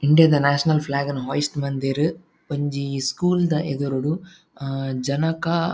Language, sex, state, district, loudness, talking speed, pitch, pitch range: Tulu, male, Karnataka, Dakshina Kannada, -22 LUFS, 135 wpm, 145 Hz, 140-160 Hz